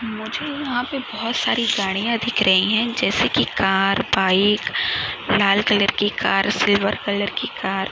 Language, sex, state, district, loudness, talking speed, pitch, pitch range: Hindi, female, Maharashtra, Chandrapur, -19 LUFS, 150 wpm, 205 Hz, 195-235 Hz